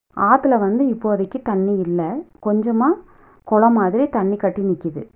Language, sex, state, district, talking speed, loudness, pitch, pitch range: Tamil, female, Tamil Nadu, Nilgiris, 130 wpm, -18 LUFS, 215 Hz, 195-265 Hz